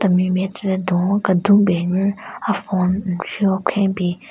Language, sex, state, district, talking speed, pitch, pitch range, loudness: Rengma, female, Nagaland, Kohima, 165 wpm, 190 Hz, 180-200 Hz, -18 LUFS